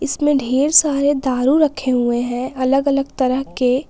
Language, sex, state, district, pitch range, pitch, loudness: Hindi, female, Jharkhand, Palamu, 255-285 Hz, 270 Hz, -17 LUFS